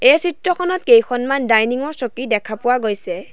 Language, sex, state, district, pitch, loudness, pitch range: Assamese, female, Assam, Sonitpur, 245 Hz, -17 LUFS, 225-305 Hz